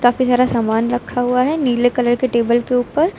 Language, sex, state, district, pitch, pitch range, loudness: Hindi, female, Uttar Pradesh, Lucknow, 245 Hz, 240-255 Hz, -16 LUFS